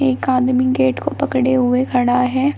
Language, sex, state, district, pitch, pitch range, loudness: Hindi, female, Uttar Pradesh, Shamli, 255 Hz, 250-260 Hz, -16 LUFS